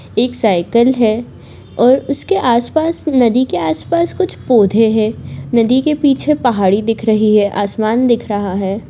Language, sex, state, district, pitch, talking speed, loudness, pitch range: Hindi, female, Bihar, Lakhisarai, 230 Hz, 160 wpm, -14 LUFS, 210-255 Hz